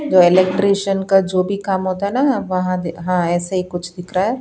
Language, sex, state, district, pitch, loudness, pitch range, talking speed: Hindi, female, Bihar, Patna, 185 Hz, -17 LUFS, 180-195 Hz, 230 wpm